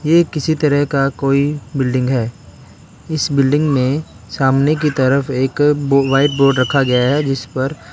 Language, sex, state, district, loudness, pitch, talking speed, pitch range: Hindi, male, Karnataka, Bangalore, -16 LUFS, 140 Hz, 165 wpm, 130-145 Hz